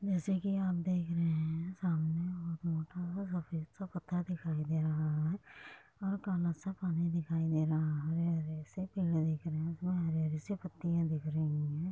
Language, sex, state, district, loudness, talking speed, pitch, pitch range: Hindi, female, Uttar Pradesh, Muzaffarnagar, -36 LUFS, 195 wpm, 170 Hz, 160-180 Hz